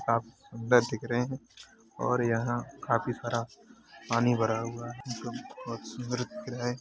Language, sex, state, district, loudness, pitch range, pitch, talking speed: Hindi, male, Uttar Pradesh, Hamirpur, -31 LUFS, 115-125 Hz, 120 Hz, 150 wpm